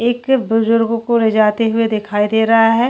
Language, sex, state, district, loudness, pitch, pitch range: Hindi, female, Chhattisgarh, Jashpur, -14 LUFS, 225 Hz, 220-230 Hz